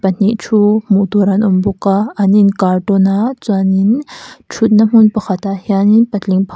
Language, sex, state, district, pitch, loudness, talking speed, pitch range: Mizo, female, Mizoram, Aizawl, 200 Hz, -12 LUFS, 175 wpm, 195-215 Hz